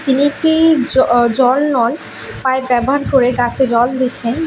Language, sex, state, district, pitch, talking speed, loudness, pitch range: Bengali, female, West Bengal, Alipurduar, 260 Hz, 160 wpm, -14 LUFS, 245-285 Hz